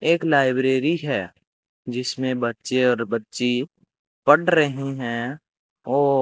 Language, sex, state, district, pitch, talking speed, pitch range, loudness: Hindi, male, Rajasthan, Bikaner, 130 Hz, 115 wpm, 125-145 Hz, -22 LUFS